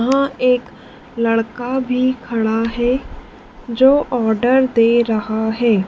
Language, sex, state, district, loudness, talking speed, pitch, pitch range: Hindi, female, Madhya Pradesh, Dhar, -17 LUFS, 110 wpm, 240 Hz, 225-255 Hz